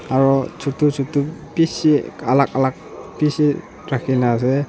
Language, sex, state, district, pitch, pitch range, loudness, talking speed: Nagamese, male, Nagaland, Dimapur, 140 Hz, 130-150 Hz, -19 LUFS, 115 wpm